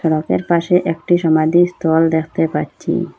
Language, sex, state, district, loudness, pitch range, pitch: Bengali, female, Assam, Hailakandi, -16 LUFS, 160-175 Hz, 165 Hz